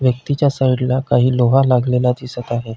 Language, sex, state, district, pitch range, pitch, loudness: Marathi, male, Maharashtra, Pune, 125-130 Hz, 125 Hz, -16 LUFS